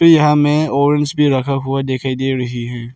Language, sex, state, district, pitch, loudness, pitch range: Hindi, male, Arunachal Pradesh, Lower Dibang Valley, 135 Hz, -15 LUFS, 130-150 Hz